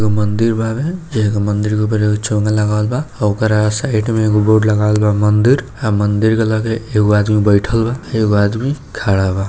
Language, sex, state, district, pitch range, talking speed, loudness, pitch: Maithili, male, Bihar, Samastipur, 105-115 Hz, 50 wpm, -15 LUFS, 105 Hz